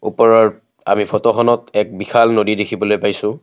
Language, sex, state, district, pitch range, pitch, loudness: Assamese, male, Assam, Kamrup Metropolitan, 105-115 Hz, 105 Hz, -15 LUFS